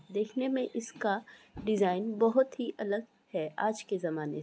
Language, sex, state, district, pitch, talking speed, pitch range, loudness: Hindi, female, Chhattisgarh, Raigarh, 215 Hz, 150 wpm, 195-230 Hz, -32 LUFS